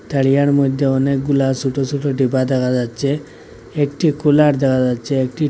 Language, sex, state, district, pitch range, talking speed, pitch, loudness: Bengali, male, Assam, Hailakandi, 130-145 Hz, 140 wpm, 135 Hz, -17 LUFS